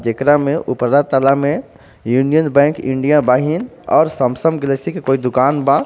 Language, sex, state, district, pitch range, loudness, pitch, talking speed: Bhojpuri, male, Jharkhand, Palamu, 130-145 Hz, -15 LUFS, 140 Hz, 135 wpm